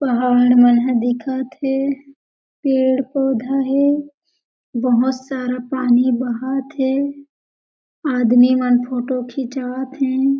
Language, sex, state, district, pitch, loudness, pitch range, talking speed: Chhattisgarhi, female, Chhattisgarh, Jashpur, 260 Hz, -18 LUFS, 250-275 Hz, 90 wpm